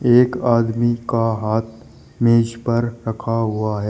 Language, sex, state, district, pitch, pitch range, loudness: Hindi, male, Uttar Pradesh, Shamli, 115 Hz, 115-120 Hz, -19 LUFS